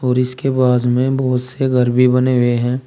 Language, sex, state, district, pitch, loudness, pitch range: Hindi, male, Uttar Pradesh, Saharanpur, 125 Hz, -15 LUFS, 125-130 Hz